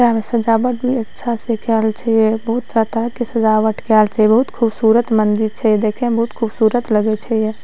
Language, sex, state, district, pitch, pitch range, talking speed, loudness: Maithili, female, Bihar, Madhepura, 225 Hz, 220-235 Hz, 210 wpm, -16 LUFS